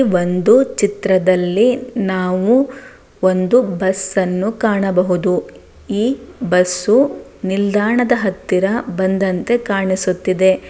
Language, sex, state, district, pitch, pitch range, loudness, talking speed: Kannada, female, Karnataka, Bellary, 195 Hz, 185-230 Hz, -16 LUFS, 75 wpm